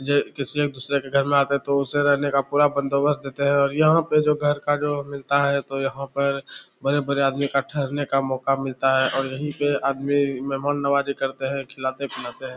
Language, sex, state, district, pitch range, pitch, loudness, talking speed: Hindi, male, Bihar, Saran, 135-145 Hz, 140 Hz, -23 LUFS, 225 wpm